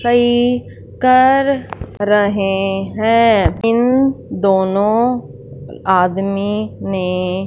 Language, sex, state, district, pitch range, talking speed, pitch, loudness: Hindi, female, Punjab, Fazilka, 195-240 Hz, 65 wpm, 205 Hz, -15 LUFS